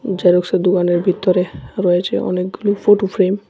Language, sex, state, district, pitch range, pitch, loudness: Bengali, male, Tripura, West Tripura, 180-200 Hz, 185 Hz, -16 LUFS